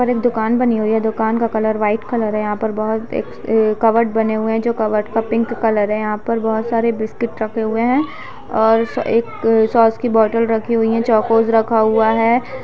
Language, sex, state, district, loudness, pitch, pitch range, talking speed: Hindi, female, Chhattisgarh, Sarguja, -17 LUFS, 225 Hz, 220-230 Hz, 210 wpm